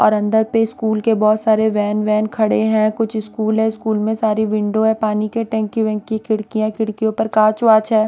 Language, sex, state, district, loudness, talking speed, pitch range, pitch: Hindi, female, Punjab, Pathankot, -17 LUFS, 210 wpm, 215-220 Hz, 220 Hz